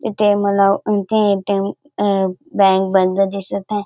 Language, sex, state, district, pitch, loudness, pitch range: Marathi, female, Maharashtra, Dhule, 200 Hz, -17 LUFS, 195-205 Hz